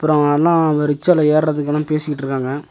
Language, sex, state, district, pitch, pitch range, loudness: Tamil, male, Tamil Nadu, Nilgiris, 150 Hz, 145-155 Hz, -16 LUFS